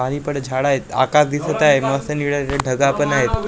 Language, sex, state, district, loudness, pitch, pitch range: Marathi, male, Maharashtra, Gondia, -18 LUFS, 140 Hz, 135-145 Hz